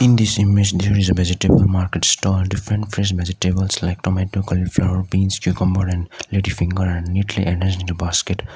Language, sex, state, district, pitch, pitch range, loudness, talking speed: English, male, Sikkim, Gangtok, 95 Hz, 90-100 Hz, -19 LUFS, 160 wpm